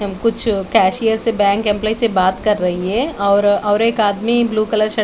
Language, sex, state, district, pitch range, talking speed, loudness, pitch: Hindi, female, Chandigarh, Chandigarh, 200-225 Hz, 200 wpm, -16 LUFS, 215 Hz